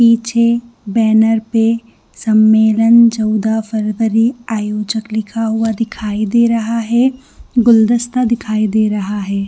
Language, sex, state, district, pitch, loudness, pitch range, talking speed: Hindi, female, Chhattisgarh, Bilaspur, 225 Hz, -14 LUFS, 215-230 Hz, 115 wpm